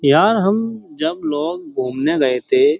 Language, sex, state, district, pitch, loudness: Hindi, male, Uttar Pradesh, Jyotiba Phule Nagar, 220 Hz, -18 LUFS